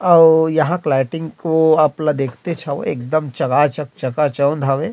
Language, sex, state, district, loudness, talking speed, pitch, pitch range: Chhattisgarhi, male, Chhattisgarh, Rajnandgaon, -17 LUFS, 170 wpm, 155 Hz, 140-160 Hz